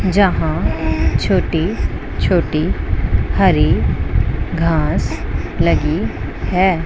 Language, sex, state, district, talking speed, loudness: Hindi, female, Punjab, Pathankot, 60 wpm, -17 LUFS